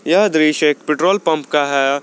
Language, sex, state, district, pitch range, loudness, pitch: Hindi, male, Jharkhand, Garhwa, 145-160 Hz, -15 LUFS, 150 Hz